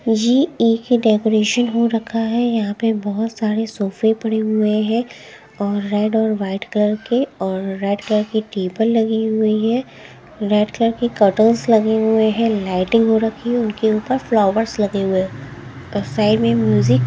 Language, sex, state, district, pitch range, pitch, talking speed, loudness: Hindi, female, Haryana, Jhajjar, 205-225 Hz, 220 Hz, 180 wpm, -18 LUFS